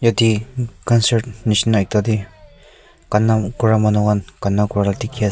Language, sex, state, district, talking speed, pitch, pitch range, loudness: Nagamese, male, Nagaland, Kohima, 145 wpm, 105 Hz, 105-115 Hz, -18 LUFS